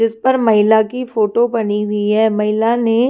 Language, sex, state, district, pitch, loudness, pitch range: Hindi, female, Himachal Pradesh, Shimla, 220 Hz, -15 LUFS, 215-235 Hz